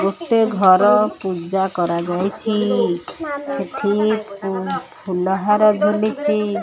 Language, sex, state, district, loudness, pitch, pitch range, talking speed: Odia, female, Odisha, Khordha, -19 LUFS, 200 Hz, 185-215 Hz, 80 wpm